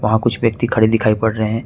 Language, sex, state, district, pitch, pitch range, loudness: Hindi, male, Jharkhand, Ranchi, 110 Hz, 110-115 Hz, -16 LUFS